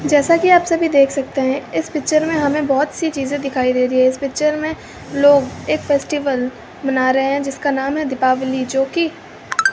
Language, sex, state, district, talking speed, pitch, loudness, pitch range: Hindi, female, Rajasthan, Bikaner, 205 wpm, 280 Hz, -17 LUFS, 265-305 Hz